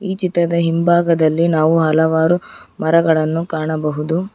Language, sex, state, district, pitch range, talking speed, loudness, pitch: Kannada, female, Karnataka, Bangalore, 160-170 Hz, 85 wpm, -16 LUFS, 165 Hz